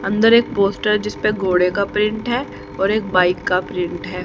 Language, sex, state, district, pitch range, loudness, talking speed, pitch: Hindi, female, Haryana, Charkhi Dadri, 185-215 Hz, -18 LUFS, 210 wpm, 200 Hz